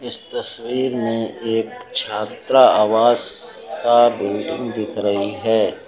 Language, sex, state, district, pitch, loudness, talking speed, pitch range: Hindi, male, Uttar Pradesh, Lucknow, 115 Hz, -18 LUFS, 110 wpm, 105-120 Hz